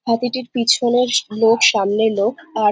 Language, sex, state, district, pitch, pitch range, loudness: Bengali, female, West Bengal, Jhargram, 230 Hz, 215-245 Hz, -17 LUFS